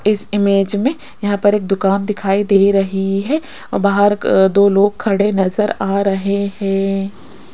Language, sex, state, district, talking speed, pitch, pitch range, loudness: Hindi, female, Rajasthan, Jaipur, 165 wpm, 200 Hz, 195-205 Hz, -15 LUFS